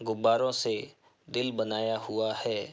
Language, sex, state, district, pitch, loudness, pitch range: Hindi, male, Uttar Pradesh, Hamirpur, 110 Hz, -30 LUFS, 110-120 Hz